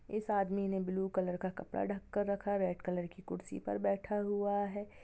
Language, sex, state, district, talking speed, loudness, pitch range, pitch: Hindi, female, Bihar, Gopalganj, 215 wpm, -37 LUFS, 180-205 Hz, 195 Hz